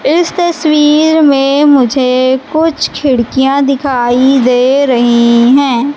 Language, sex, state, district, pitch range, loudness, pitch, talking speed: Hindi, female, Madhya Pradesh, Katni, 255-295 Hz, -9 LUFS, 275 Hz, 100 wpm